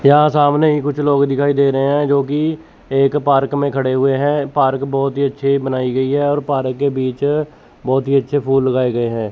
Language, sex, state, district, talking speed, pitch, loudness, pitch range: Hindi, male, Chandigarh, Chandigarh, 225 wpm, 140 Hz, -16 LUFS, 135-145 Hz